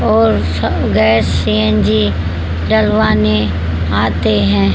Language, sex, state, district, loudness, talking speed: Hindi, female, Haryana, Jhajjar, -13 LUFS, 75 wpm